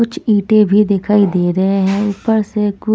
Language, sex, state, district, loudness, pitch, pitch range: Hindi, female, Punjab, Kapurthala, -14 LUFS, 205 Hz, 195-215 Hz